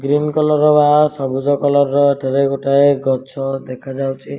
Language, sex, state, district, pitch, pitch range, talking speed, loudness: Odia, male, Odisha, Malkangiri, 140 Hz, 135-145 Hz, 180 wpm, -15 LUFS